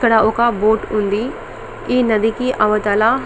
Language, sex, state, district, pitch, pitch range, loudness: Telugu, female, Telangana, Karimnagar, 225 Hz, 215-250 Hz, -16 LUFS